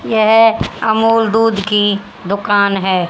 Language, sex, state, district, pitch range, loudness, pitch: Hindi, female, Haryana, Rohtak, 200-220 Hz, -13 LUFS, 205 Hz